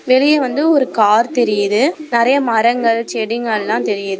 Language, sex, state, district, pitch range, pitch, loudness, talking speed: Tamil, female, Tamil Nadu, Namakkal, 220-265 Hz, 235 Hz, -15 LUFS, 130 wpm